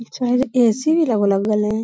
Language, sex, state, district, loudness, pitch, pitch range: Magahi, female, Bihar, Lakhisarai, -18 LUFS, 235 Hz, 210-255 Hz